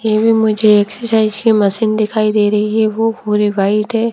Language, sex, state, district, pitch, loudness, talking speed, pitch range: Hindi, female, Himachal Pradesh, Shimla, 215 Hz, -14 LUFS, 190 wpm, 210-220 Hz